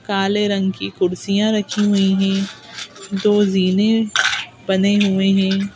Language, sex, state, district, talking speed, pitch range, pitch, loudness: Hindi, female, Madhya Pradesh, Bhopal, 125 wpm, 195-205 Hz, 195 Hz, -17 LUFS